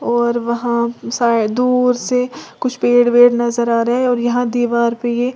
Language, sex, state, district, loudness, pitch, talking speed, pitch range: Hindi, female, Uttar Pradesh, Lalitpur, -16 LUFS, 240 Hz, 190 wpm, 235-245 Hz